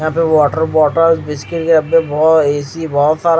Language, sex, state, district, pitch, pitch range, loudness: Hindi, male, Chhattisgarh, Raipur, 160 Hz, 150-165 Hz, -13 LUFS